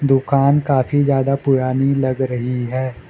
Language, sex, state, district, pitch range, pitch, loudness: Hindi, male, Arunachal Pradesh, Lower Dibang Valley, 130-140 Hz, 135 Hz, -17 LUFS